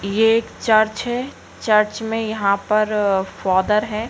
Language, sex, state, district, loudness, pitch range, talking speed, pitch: Hindi, female, Bihar, East Champaran, -19 LUFS, 200-225 Hz, 145 wpm, 215 Hz